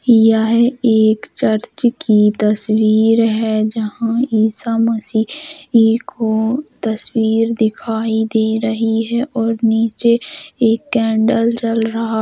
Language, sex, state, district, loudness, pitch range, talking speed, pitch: Hindi, female, Bihar, Gopalganj, -15 LUFS, 220-235 Hz, 110 wpm, 225 Hz